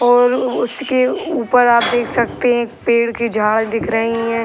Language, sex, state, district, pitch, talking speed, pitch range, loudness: Hindi, female, Bihar, Sitamarhi, 235 Hz, 190 wpm, 230-245 Hz, -16 LUFS